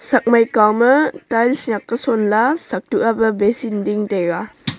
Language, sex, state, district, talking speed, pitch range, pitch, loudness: Wancho, female, Arunachal Pradesh, Longding, 200 wpm, 210-245 Hz, 230 Hz, -17 LUFS